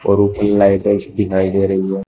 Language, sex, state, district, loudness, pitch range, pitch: Hindi, male, Uttar Pradesh, Shamli, -15 LUFS, 95-100 Hz, 100 Hz